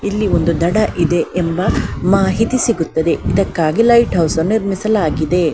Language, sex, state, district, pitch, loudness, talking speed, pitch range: Kannada, female, Karnataka, Dakshina Kannada, 180 Hz, -15 LUFS, 130 wpm, 165-215 Hz